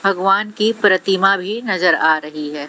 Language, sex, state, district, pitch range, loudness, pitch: Hindi, female, Haryana, Jhajjar, 160-205 Hz, -16 LUFS, 195 Hz